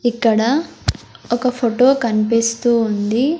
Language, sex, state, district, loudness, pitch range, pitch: Telugu, female, Andhra Pradesh, Sri Satya Sai, -17 LUFS, 225-250 Hz, 235 Hz